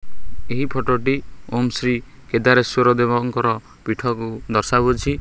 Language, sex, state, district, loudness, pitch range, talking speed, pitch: Odia, male, Odisha, Khordha, -20 LUFS, 115-125 Hz, 125 wpm, 125 Hz